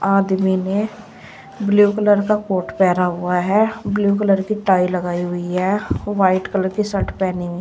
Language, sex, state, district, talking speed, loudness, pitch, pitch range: Hindi, female, Uttar Pradesh, Saharanpur, 180 wpm, -18 LUFS, 195 Hz, 180-205 Hz